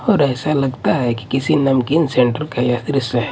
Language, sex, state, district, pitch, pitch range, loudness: Hindi, male, Odisha, Malkangiri, 135 Hz, 125-145 Hz, -17 LUFS